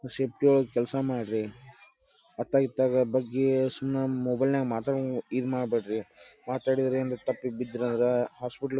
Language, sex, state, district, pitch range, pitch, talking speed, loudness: Kannada, male, Karnataka, Dharwad, 120-135 Hz, 130 Hz, 125 wpm, -28 LUFS